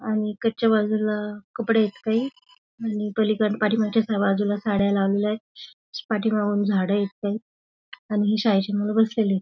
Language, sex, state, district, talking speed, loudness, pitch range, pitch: Marathi, female, Maharashtra, Aurangabad, 145 wpm, -23 LUFS, 205-220 Hz, 215 Hz